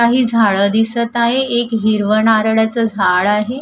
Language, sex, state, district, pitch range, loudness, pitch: Marathi, female, Maharashtra, Gondia, 215-235 Hz, -14 LUFS, 225 Hz